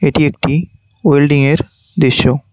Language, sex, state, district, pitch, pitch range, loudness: Bengali, male, West Bengal, Cooch Behar, 135 Hz, 110-145 Hz, -13 LUFS